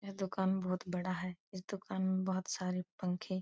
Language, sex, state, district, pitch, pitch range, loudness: Hindi, female, Uttar Pradesh, Etah, 185 Hz, 185-190 Hz, -38 LUFS